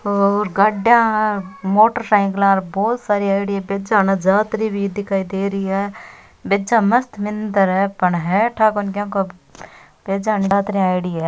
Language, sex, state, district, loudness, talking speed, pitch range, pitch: Rajasthani, female, Rajasthan, Churu, -18 LUFS, 160 wpm, 195-215 Hz, 200 Hz